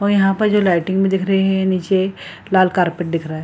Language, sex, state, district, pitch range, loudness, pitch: Hindi, female, Bihar, Lakhisarai, 180-195 Hz, -17 LUFS, 190 Hz